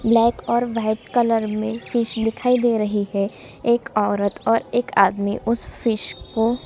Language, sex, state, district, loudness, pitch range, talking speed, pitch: Hindi, female, Chhattisgarh, Sukma, -21 LUFS, 210-235 Hz, 170 wpm, 225 Hz